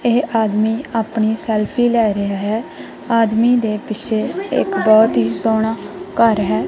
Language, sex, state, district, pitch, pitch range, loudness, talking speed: Punjabi, female, Punjab, Kapurthala, 220 Hz, 215-230 Hz, -17 LUFS, 145 wpm